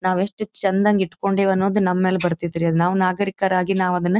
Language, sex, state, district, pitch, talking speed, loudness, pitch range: Kannada, female, Karnataka, Dharwad, 190 Hz, 185 wpm, -20 LUFS, 180-195 Hz